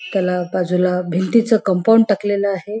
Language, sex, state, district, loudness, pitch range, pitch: Marathi, female, Maharashtra, Nagpur, -17 LUFS, 180-210 Hz, 190 Hz